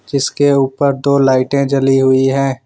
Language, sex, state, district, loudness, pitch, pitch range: Hindi, male, Jharkhand, Ranchi, -13 LUFS, 135 Hz, 135-140 Hz